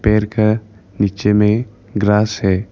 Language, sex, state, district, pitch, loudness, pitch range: Hindi, male, Arunachal Pradesh, Lower Dibang Valley, 105 Hz, -16 LUFS, 100-110 Hz